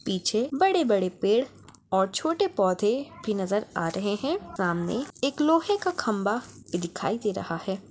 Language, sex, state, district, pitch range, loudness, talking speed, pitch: Hindi, female, Chhattisgarh, Bastar, 190-285 Hz, -27 LUFS, 160 wpm, 210 Hz